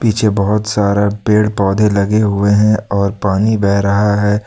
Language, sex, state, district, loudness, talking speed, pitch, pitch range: Hindi, male, Jharkhand, Deoghar, -13 LUFS, 175 wpm, 105 Hz, 100-105 Hz